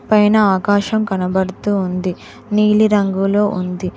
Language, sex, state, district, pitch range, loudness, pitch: Telugu, female, Telangana, Mahabubabad, 185-210 Hz, -16 LUFS, 200 Hz